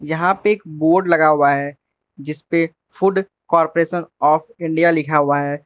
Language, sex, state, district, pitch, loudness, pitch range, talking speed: Hindi, male, Arunachal Pradesh, Lower Dibang Valley, 160 Hz, -17 LUFS, 150-170 Hz, 170 wpm